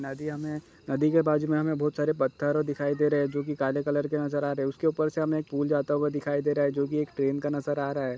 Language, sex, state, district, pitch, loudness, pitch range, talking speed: Hindi, male, Uttar Pradesh, Jalaun, 145 Hz, -28 LUFS, 140-150 Hz, 315 wpm